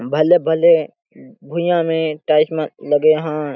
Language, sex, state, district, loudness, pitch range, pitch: Sadri, male, Chhattisgarh, Jashpur, -16 LUFS, 150-165 Hz, 155 Hz